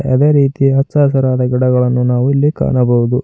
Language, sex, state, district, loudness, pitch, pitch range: Kannada, male, Karnataka, Koppal, -13 LUFS, 130 Hz, 125-140 Hz